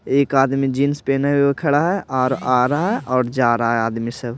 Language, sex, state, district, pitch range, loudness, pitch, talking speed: Hindi, male, Bihar, Patna, 125-140 Hz, -18 LUFS, 135 Hz, 235 wpm